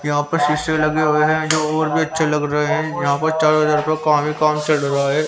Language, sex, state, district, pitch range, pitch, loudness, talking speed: Hindi, male, Haryana, Rohtak, 150-155 Hz, 155 Hz, -18 LUFS, 250 wpm